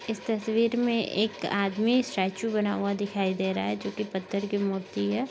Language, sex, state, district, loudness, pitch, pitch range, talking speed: Hindi, female, Maharashtra, Nagpur, -28 LUFS, 200 Hz, 190-225 Hz, 205 wpm